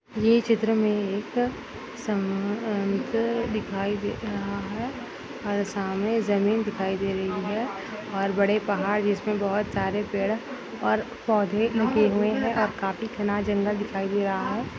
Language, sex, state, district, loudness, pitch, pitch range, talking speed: Hindi, female, Maharashtra, Sindhudurg, -26 LUFS, 205 Hz, 200-220 Hz, 140 wpm